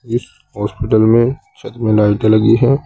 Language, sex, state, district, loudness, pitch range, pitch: Hindi, male, Uttar Pradesh, Saharanpur, -14 LUFS, 110-120 Hz, 115 Hz